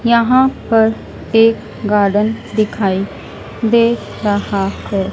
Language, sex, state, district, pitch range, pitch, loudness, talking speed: Hindi, female, Madhya Pradesh, Dhar, 205-230 Hz, 220 Hz, -15 LUFS, 95 wpm